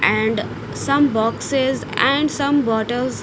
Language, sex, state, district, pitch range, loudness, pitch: English, female, Punjab, Kapurthala, 225-280 Hz, -19 LUFS, 265 Hz